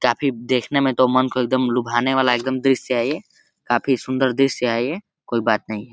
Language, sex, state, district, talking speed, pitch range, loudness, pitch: Hindi, male, Uttar Pradesh, Deoria, 235 wpm, 120-135 Hz, -20 LUFS, 130 Hz